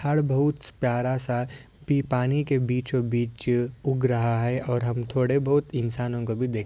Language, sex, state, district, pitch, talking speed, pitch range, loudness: Hindi, male, Uttar Pradesh, Ghazipur, 125 Hz, 180 wpm, 120-135 Hz, -25 LUFS